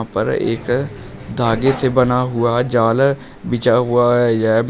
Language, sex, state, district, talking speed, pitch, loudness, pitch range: Hindi, male, Uttar Pradesh, Shamli, 155 wpm, 120 Hz, -16 LUFS, 115-130 Hz